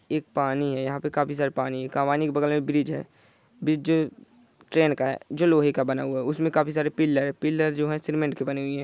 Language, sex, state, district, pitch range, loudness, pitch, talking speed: Hindi, male, Bihar, Saran, 140-155 Hz, -25 LUFS, 145 Hz, 260 wpm